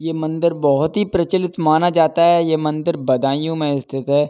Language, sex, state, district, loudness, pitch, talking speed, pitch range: Hindi, male, Uttar Pradesh, Budaun, -17 LUFS, 160 Hz, 195 wpm, 145-170 Hz